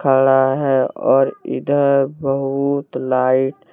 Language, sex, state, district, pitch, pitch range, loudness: Hindi, male, Jharkhand, Deoghar, 135 Hz, 130-140 Hz, -17 LUFS